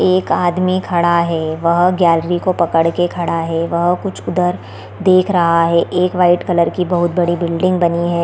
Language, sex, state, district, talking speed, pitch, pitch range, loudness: Hindi, female, Bihar, East Champaran, 190 wpm, 175 Hz, 170-180 Hz, -15 LUFS